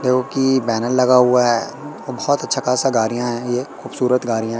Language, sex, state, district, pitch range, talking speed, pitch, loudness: Hindi, male, Madhya Pradesh, Katni, 120-130 Hz, 185 wpm, 125 Hz, -18 LUFS